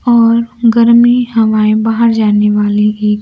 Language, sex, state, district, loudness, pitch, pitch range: Hindi, female, Bihar, Kaimur, -10 LUFS, 225 Hz, 210-235 Hz